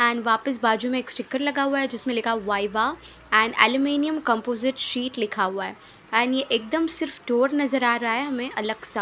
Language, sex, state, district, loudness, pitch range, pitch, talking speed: Hindi, female, Haryana, Charkhi Dadri, -23 LUFS, 225-275 Hz, 245 Hz, 215 wpm